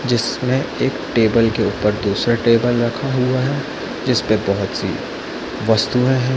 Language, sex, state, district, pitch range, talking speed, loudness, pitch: Hindi, male, Chhattisgarh, Bilaspur, 110-130 Hz, 140 wpm, -18 LUFS, 120 Hz